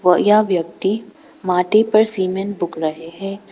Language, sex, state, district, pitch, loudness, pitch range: Hindi, female, Arunachal Pradesh, Papum Pare, 190 Hz, -18 LUFS, 175-210 Hz